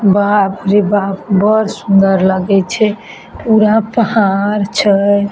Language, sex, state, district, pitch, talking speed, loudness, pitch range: Maithili, female, Bihar, Samastipur, 205 Hz, 125 wpm, -12 LUFS, 195-215 Hz